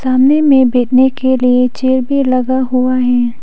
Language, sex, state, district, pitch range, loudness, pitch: Hindi, female, Arunachal Pradesh, Papum Pare, 250-260 Hz, -12 LUFS, 255 Hz